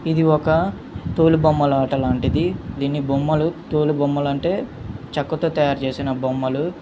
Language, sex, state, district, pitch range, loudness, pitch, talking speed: Telugu, male, Andhra Pradesh, Guntur, 135-160 Hz, -20 LUFS, 145 Hz, 125 wpm